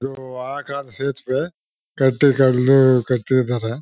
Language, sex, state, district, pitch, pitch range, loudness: Kannada, male, Karnataka, Chamarajanagar, 130 Hz, 125-140 Hz, -18 LUFS